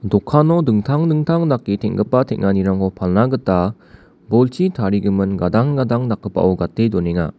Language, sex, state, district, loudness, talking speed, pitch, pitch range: Garo, male, Meghalaya, West Garo Hills, -17 LUFS, 120 wpm, 105 Hz, 95-130 Hz